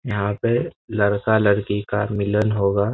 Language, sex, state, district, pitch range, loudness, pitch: Hindi, male, Bihar, Jamui, 100-110 Hz, -21 LUFS, 105 Hz